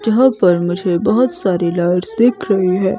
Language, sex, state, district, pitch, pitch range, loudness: Hindi, female, Himachal Pradesh, Shimla, 190 Hz, 175-225 Hz, -15 LUFS